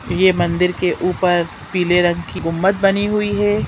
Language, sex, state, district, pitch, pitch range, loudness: Hindi, female, Chhattisgarh, Sukma, 180 Hz, 175-195 Hz, -17 LUFS